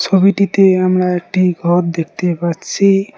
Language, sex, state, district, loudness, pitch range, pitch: Bengali, male, West Bengal, Cooch Behar, -14 LUFS, 175-195 Hz, 185 Hz